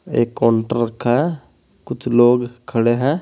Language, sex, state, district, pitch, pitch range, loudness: Hindi, male, Uttar Pradesh, Saharanpur, 120 Hz, 115-125 Hz, -18 LUFS